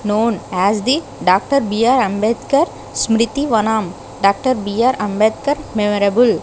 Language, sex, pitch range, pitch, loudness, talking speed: English, female, 205-255 Hz, 220 Hz, -16 LUFS, 105 wpm